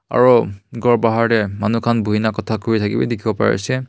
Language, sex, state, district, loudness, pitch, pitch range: Nagamese, male, Nagaland, Kohima, -17 LUFS, 110 Hz, 105-115 Hz